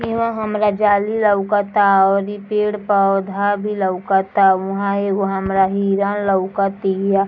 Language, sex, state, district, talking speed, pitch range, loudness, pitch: Bhojpuri, female, Bihar, East Champaran, 130 wpm, 195-205 Hz, -17 LUFS, 200 Hz